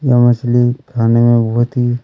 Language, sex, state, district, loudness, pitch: Hindi, male, Chhattisgarh, Kabirdham, -13 LUFS, 120 Hz